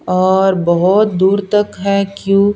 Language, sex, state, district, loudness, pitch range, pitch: Hindi, female, Punjab, Pathankot, -13 LUFS, 190-200 Hz, 195 Hz